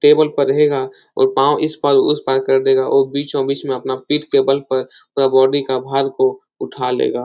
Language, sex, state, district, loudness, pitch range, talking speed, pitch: Hindi, male, Uttar Pradesh, Etah, -16 LUFS, 135-155 Hz, 230 wpm, 140 Hz